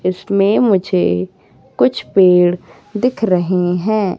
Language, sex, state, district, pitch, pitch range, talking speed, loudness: Hindi, female, Madhya Pradesh, Katni, 185 Hz, 180-205 Hz, 100 wpm, -15 LUFS